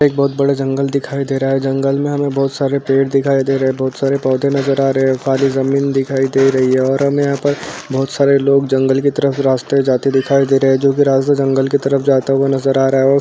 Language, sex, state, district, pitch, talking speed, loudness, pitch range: Hindi, male, Uttar Pradesh, Jalaun, 135 Hz, 270 wpm, -15 LUFS, 135-140 Hz